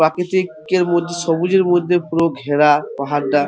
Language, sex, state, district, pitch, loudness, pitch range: Bengali, male, West Bengal, Purulia, 165 Hz, -17 LUFS, 150-175 Hz